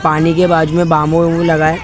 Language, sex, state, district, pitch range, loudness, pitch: Hindi, male, Maharashtra, Mumbai Suburban, 155-170 Hz, -12 LUFS, 165 Hz